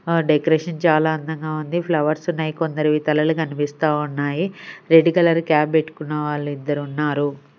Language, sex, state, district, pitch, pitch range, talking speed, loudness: Telugu, female, Andhra Pradesh, Sri Satya Sai, 155 Hz, 150-165 Hz, 140 wpm, -20 LUFS